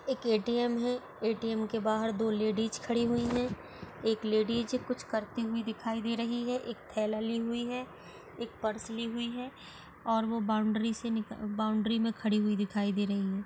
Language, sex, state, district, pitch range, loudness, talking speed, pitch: Hindi, female, Maharashtra, Dhule, 220-235 Hz, -32 LUFS, 190 wpm, 225 Hz